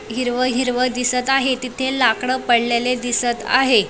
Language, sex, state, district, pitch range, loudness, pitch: Marathi, female, Maharashtra, Dhule, 245-255 Hz, -18 LUFS, 250 Hz